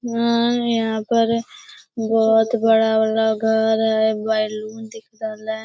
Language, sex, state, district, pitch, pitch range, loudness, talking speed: Hindi, female, Bihar, Begusarai, 220 Hz, 220-230 Hz, -19 LUFS, 95 wpm